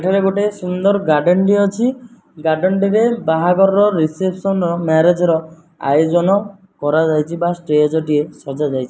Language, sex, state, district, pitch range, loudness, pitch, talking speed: Odia, male, Odisha, Nuapada, 160-195 Hz, -16 LUFS, 175 Hz, 140 wpm